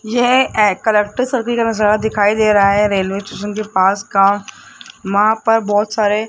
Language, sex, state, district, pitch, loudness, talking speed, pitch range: Hindi, male, Rajasthan, Jaipur, 210 Hz, -15 LUFS, 160 wpm, 205-220 Hz